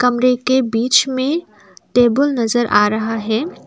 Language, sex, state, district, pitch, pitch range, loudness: Hindi, female, Assam, Kamrup Metropolitan, 245 Hz, 225-260 Hz, -16 LUFS